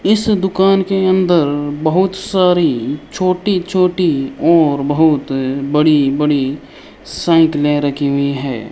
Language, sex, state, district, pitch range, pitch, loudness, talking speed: Hindi, male, Rajasthan, Bikaner, 145-185 Hz, 155 Hz, -14 LUFS, 110 wpm